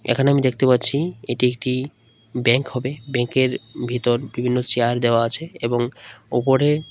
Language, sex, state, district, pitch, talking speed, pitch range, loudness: Bengali, male, Tripura, West Tripura, 125 Hz, 155 wpm, 120-135 Hz, -20 LUFS